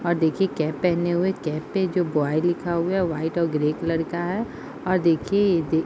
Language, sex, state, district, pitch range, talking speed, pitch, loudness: Hindi, female, Bihar, Madhepura, 160-185 Hz, 225 wpm, 170 Hz, -23 LUFS